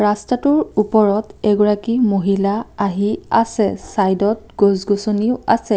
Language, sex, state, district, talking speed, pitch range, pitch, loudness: Assamese, female, Assam, Kamrup Metropolitan, 105 wpm, 200-225 Hz, 210 Hz, -17 LUFS